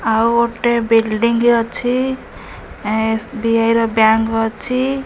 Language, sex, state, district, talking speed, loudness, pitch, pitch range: Odia, female, Odisha, Khordha, 95 wpm, -16 LUFS, 230 Hz, 225-240 Hz